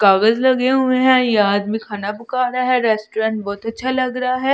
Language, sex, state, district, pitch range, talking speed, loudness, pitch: Hindi, female, Delhi, New Delhi, 215-255 Hz, 210 wpm, -17 LUFS, 235 Hz